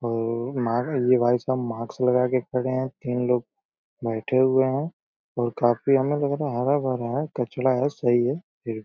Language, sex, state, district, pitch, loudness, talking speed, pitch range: Hindi, male, Uttar Pradesh, Deoria, 125 Hz, -24 LUFS, 190 wpm, 120-135 Hz